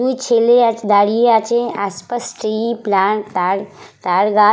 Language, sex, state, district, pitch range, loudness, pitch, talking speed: Bengali, female, West Bengal, Purulia, 205-235 Hz, -16 LUFS, 215 Hz, 130 wpm